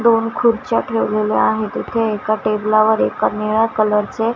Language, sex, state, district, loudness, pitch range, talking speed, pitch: Marathi, female, Maharashtra, Washim, -17 LUFS, 210-225 Hz, 180 wpm, 215 Hz